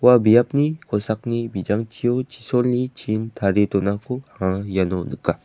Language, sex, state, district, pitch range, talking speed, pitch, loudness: Garo, male, Meghalaya, West Garo Hills, 100-125 Hz, 110 wpm, 115 Hz, -21 LUFS